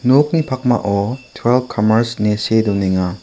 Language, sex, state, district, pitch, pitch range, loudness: Garo, male, Meghalaya, South Garo Hills, 110 Hz, 105-125 Hz, -16 LUFS